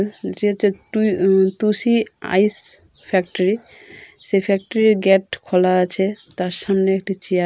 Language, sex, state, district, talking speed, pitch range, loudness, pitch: Bengali, female, West Bengal, Dakshin Dinajpur, 135 wpm, 190-215 Hz, -19 LUFS, 195 Hz